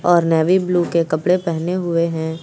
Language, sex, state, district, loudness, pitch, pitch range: Hindi, female, Uttar Pradesh, Lucknow, -18 LUFS, 170 Hz, 165-175 Hz